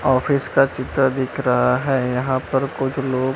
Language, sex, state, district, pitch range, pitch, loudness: Hindi, male, Maharashtra, Gondia, 130-135 Hz, 130 Hz, -20 LUFS